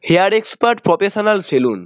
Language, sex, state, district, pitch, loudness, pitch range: Bengali, male, West Bengal, Dakshin Dinajpur, 200 Hz, -15 LUFS, 165-215 Hz